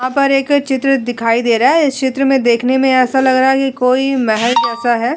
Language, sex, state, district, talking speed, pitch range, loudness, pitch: Hindi, female, Uttar Pradesh, Budaun, 255 wpm, 240-270 Hz, -13 LUFS, 260 Hz